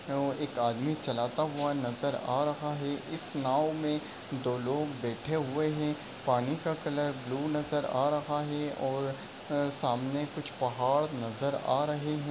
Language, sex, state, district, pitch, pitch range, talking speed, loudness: Hindi, male, Uttar Pradesh, Varanasi, 145 Hz, 135-150 Hz, 160 wpm, -32 LUFS